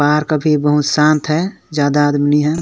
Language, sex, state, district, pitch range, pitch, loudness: Sadri, male, Chhattisgarh, Jashpur, 145-155 Hz, 150 Hz, -15 LUFS